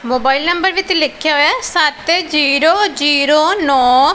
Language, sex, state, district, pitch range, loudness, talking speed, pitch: Punjabi, female, Punjab, Pathankot, 285-350 Hz, -13 LUFS, 145 wpm, 300 Hz